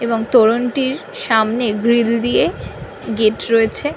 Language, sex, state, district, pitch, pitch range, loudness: Bengali, female, West Bengal, North 24 Parganas, 230 Hz, 225-245 Hz, -16 LUFS